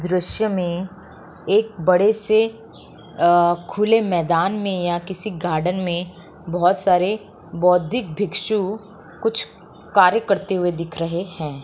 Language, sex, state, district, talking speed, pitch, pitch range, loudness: Hindi, female, Uttar Pradesh, Muzaffarnagar, 125 wpm, 185 Hz, 175-210 Hz, -20 LUFS